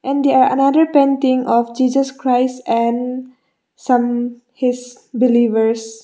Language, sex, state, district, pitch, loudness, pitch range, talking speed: English, female, Mizoram, Aizawl, 255 Hz, -16 LUFS, 240-265 Hz, 120 wpm